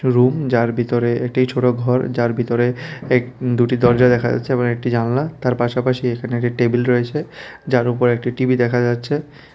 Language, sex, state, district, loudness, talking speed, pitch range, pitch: Bengali, male, Tripura, West Tripura, -18 LUFS, 175 wpm, 120-130 Hz, 125 Hz